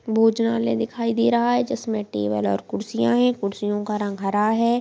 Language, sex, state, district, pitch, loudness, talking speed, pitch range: Hindi, female, Bihar, Purnia, 220 Hz, -22 LUFS, 185 wpm, 200-230 Hz